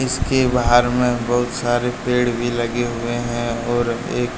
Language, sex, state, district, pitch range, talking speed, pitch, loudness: Hindi, male, Jharkhand, Deoghar, 120-125 Hz, 165 wpm, 120 Hz, -19 LUFS